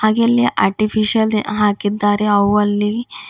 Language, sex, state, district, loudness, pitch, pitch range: Kannada, female, Karnataka, Bidar, -16 LUFS, 210 Hz, 205-220 Hz